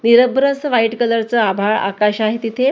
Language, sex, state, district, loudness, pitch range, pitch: Marathi, female, Maharashtra, Gondia, -16 LUFS, 215-250 Hz, 230 Hz